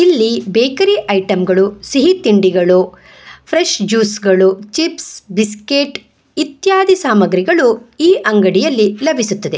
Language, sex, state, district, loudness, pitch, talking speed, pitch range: Kannada, female, Karnataka, Bangalore, -13 LUFS, 215 Hz, 100 wpm, 195-295 Hz